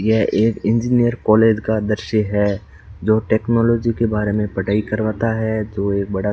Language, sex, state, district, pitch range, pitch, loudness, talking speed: Hindi, male, Rajasthan, Bikaner, 105-110 Hz, 110 Hz, -18 LUFS, 180 wpm